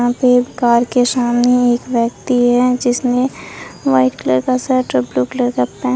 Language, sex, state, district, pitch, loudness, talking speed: Hindi, female, Bihar, Katihar, 245 Hz, -15 LUFS, 200 wpm